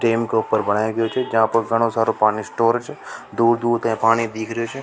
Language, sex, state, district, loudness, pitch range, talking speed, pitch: Rajasthani, male, Rajasthan, Nagaur, -19 LUFS, 110-115 Hz, 250 wpm, 115 Hz